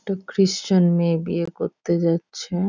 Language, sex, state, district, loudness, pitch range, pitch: Bengali, female, West Bengal, Jhargram, -21 LUFS, 170-195 Hz, 175 Hz